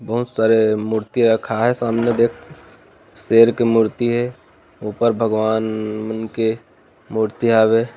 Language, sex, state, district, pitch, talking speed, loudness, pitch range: Chhattisgarhi, male, Chhattisgarh, Rajnandgaon, 115 Hz, 130 wpm, -18 LUFS, 110-115 Hz